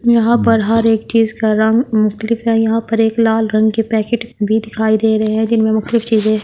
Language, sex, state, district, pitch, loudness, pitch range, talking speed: Hindi, female, Delhi, New Delhi, 225 Hz, -14 LUFS, 220-230 Hz, 225 wpm